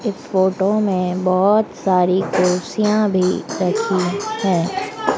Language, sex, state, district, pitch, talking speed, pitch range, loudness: Hindi, female, Madhya Pradesh, Dhar, 190 Hz, 105 wpm, 185-215 Hz, -18 LUFS